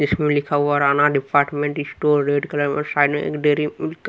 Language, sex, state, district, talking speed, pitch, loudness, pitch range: Hindi, male, Haryana, Rohtak, 205 wpm, 145 Hz, -19 LUFS, 145-150 Hz